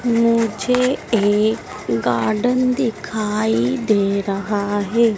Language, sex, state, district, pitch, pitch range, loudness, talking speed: Hindi, female, Madhya Pradesh, Dhar, 220 Hz, 205-235 Hz, -19 LUFS, 80 wpm